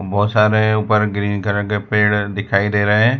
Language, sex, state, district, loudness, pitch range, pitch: Hindi, male, Gujarat, Valsad, -16 LUFS, 100-105 Hz, 105 Hz